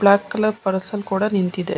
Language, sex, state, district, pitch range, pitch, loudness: Kannada, female, Karnataka, Mysore, 190-210 Hz, 200 Hz, -21 LUFS